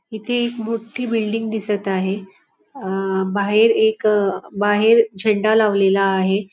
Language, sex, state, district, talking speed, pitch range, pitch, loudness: Marathi, female, Goa, North and South Goa, 120 wpm, 195-225 Hz, 210 Hz, -18 LUFS